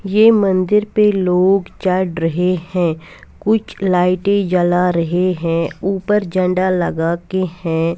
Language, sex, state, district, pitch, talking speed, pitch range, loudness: Hindi, female, Punjab, Fazilka, 185 Hz, 120 wpm, 175-195 Hz, -16 LUFS